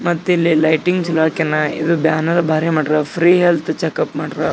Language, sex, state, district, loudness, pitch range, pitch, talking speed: Kannada, male, Karnataka, Gulbarga, -16 LUFS, 155-175 Hz, 160 Hz, 160 wpm